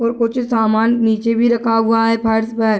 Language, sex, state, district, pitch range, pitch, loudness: Hindi, female, Bihar, Gopalganj, 225-230 Hz, 225 Hz, -15 LUFS